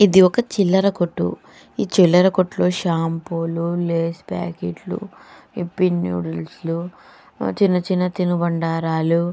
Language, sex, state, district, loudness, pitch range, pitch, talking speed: Telugu, female, Andhra Pradesh, Chittoor, -20 LUFS, 165-185 Hz, 175 Hz, 105 wpm